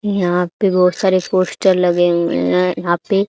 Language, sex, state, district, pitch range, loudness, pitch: Hindi, female, Haryana, Charkhi Dadri, 175-190 Hz, -16 LUFS, 180 Hz